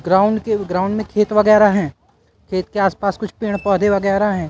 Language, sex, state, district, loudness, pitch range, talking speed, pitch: Hindi, male, Madhya Pradesh, Katni, -17 LUFS, 185-210 Hz, 185 wpm, 200 Hz